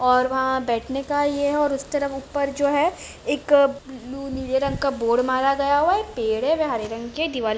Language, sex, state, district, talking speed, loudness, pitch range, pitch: Hindi, female, Jharkhand, Jamtara, 260 wpm, -22 LUFS, 260-290 Hz, 275 Hz